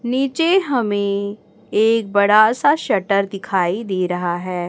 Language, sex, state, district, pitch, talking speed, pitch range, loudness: Hindi, female, Chhattisgarh, Raipur, 205 Hz, 130 wpm, 190-235 Hz, -18 LUFS